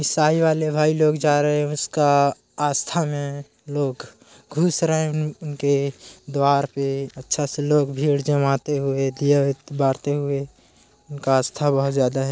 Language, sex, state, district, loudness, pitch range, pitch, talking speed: Hindi, male, Chhattisgarh, Korba, -21 LUFS, 140-150 Hz, 145 Hz, 145 wpm